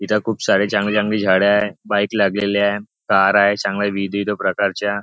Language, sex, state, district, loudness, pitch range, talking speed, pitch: Marathi, male, Maharashtra, Nagpur, -18 LUFS, 100-105 Hz, 190 wpm, 100 Hz